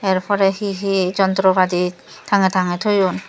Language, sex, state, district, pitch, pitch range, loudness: Chakma, female, Tripura, Dhalai, 190 Hz, 185-200 Hz, -18 LUFS